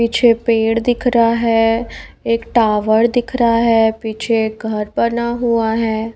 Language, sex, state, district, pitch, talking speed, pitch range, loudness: Hindi, female, Maharashtra, Mumbai Suburban, 230 Hz, 155 wpm, 220-235 Hz, -15 LUFS